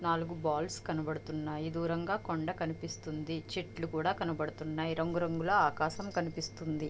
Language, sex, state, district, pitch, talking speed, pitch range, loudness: Telugu, female, Andhra Pradesh, Visakhapatnam, 160 Hz, 105 wpm, 155-165 Hz, -35 LUFS